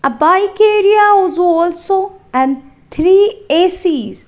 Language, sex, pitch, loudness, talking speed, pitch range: English, female, 360 Hz, -12 LUFS, 100 wpm, 315-400 Hz